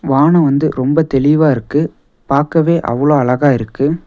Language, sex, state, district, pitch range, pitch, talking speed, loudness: Tamil, male, Tamil Nadu, Nilgiris, 135-155 Hz, 145 Hz, 135 wpm, -13 LUFS